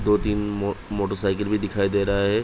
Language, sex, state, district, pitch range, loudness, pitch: Hindi, male, Uttar Pradesh, Budaun, 100-105 Hz, -24 LUFS, 100 Hz